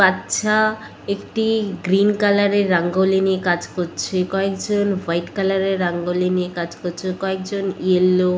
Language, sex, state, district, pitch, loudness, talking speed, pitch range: Bengali, female, West Bengal, Purulia, 190 Hz, -20 LUFS, 145 wpm, 180-200 Hz